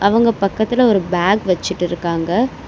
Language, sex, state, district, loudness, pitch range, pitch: Tamil, female, Tamil Nadu, Chennai, -17 LUFS, 175-225 Hz, 195 Hz